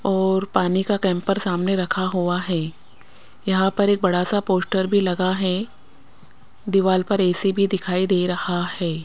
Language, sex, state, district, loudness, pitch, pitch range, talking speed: Hindi, female, Rajasthan, Jaipur, -21 LUFS, 185 Hz, 180-195 Hz, 165 wpm